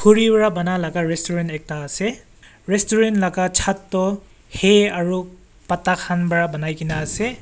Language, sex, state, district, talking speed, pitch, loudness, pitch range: Nagamese, male, Nagaland, Kohima, 135 wpm, 185 Hz, -20 LUFS, 170-205 Hz